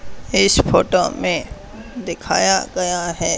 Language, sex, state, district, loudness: Hindi, male, Haryana, Charkhi Dadri, -17 LUFS